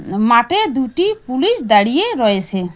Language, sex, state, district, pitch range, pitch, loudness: Bengali, female, West Bengal, Cooch Behar, 205-315 Hz, 235 Hz, -15 LUFS